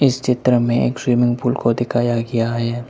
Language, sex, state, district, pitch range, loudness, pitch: Hindi, male, Arunachal Pradesh, Lower Dibang Valley, 120-125 Hz, -18 LUFS, 120 Hz